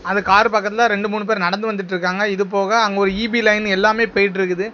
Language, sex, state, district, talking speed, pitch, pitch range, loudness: Tamil, male, Tamil Nadu, Kanyakumari, 215 wpm, 205 Hz, 195-220 Hz, -17 LUFS